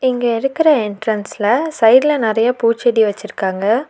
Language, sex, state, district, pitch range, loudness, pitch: Tamil, female, Tamil Nadu, Nilgiris, 215-255 Hz, -15 LUFS, 230 Hz